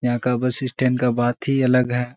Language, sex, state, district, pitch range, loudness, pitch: Hindi, male, Bihar, Kishanganj, 120-125 Hz, -20 LUFS, 125 Hz